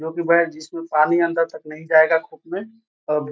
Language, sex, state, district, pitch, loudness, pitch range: Hindi, male, Bihar, Saran, 165 Hz, -20 LUFS, 155-170 Hz